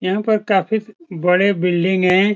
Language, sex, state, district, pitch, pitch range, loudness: Hindi, male, Bihar, Saran, 190 Hz, 180-205 Hz, -17 LUFS